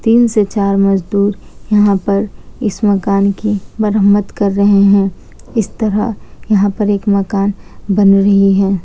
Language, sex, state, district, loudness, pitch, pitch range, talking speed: Hindi, female, Bihar, Kishanganj, -13 LUFS, 200 Hz, 200-210 Hz, 155 wpm